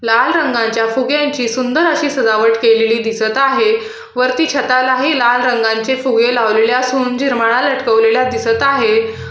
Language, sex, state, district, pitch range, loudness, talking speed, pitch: Marathi, female, Maharashtra, Aurangabad, 225-275 Hz, -13 LUFS, 130 wpm, 250 Hz